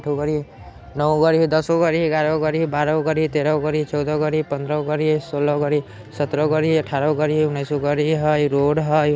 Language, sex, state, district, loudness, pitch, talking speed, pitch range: Bajjika, male, Bihar, Vaishali, -20 LUFS, 150 Hz, 315 wpm, 145-155 Hz